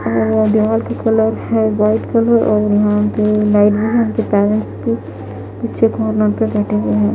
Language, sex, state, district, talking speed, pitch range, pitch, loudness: Hindi, female, Haryana, Jhajjar, 160 wpm, 205-220 Hz, 210 Hz, -15 LUFS